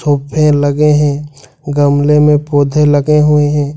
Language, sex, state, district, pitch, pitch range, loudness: Hindi, male, Jharkhand, Ranchi, 145 Hz, 145-150 Hz, -11 LUFS